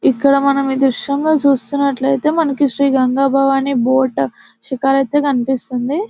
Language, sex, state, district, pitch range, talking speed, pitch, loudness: Telugu, female, Telangana, Nalgonda, 265-280 Hz, 130 wpm, 275 Hz, -15 LUFS